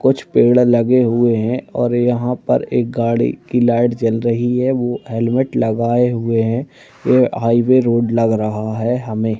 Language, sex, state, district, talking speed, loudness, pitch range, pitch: Hindi, male, Chhattisgarh, Bastar, 170 wpm, -16 LUFS, 115-125 Hz, 120 Hz